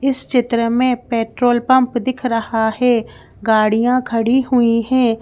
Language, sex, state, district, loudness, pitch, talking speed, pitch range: Hindi, female, Madhya Pradesh, Bhopal, -16 LUFS, 240 Hz, 140 wpm, 230-255 Hz